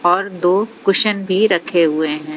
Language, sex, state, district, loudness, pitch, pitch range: Hindi, female, Haryana, Jhajjar, -15 LUFS, 185 Hz, 165-200 Hz